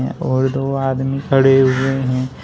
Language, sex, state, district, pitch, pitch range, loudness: Hindi, male, Uttar Pradesh, Shamli, 135 Hz, 130-135 Hz, -16 LUFS